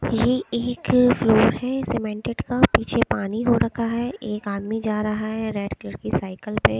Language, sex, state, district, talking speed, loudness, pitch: Hindi, female, Haryana, Charkhi Dadri, 175 wpm, -22 LUFS, 210 Hz